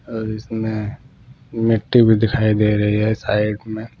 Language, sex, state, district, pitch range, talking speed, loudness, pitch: Hindi, male, Punjab, Pathankot, 105-115 Hz, 150 wpm, -18 LUFS, 110 Hz